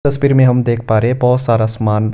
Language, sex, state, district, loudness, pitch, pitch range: Hindi, male, Himachal Pradesh, Shimla, -13 LUFS, 120 Hz, 110-125 Hz